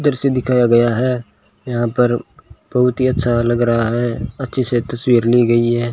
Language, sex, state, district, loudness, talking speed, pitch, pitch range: Hindi, male, Rajasthan, Bikaner, -16 LUFS, 180 wpm, 120 Hz, 120-125 Hz